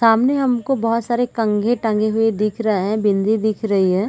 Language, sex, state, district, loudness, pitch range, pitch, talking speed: Hindi, female, Chhattisgarh, Raigarh, -18 LUFS, 210-235 Hz, 220 Hz, 205 wpm